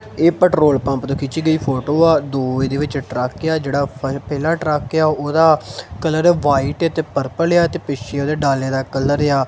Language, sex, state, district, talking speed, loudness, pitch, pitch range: Punjabi, male, Punjab, Kapurthala, 235 wpm, -17 LUFS, 145 Hz, 135-160 Hz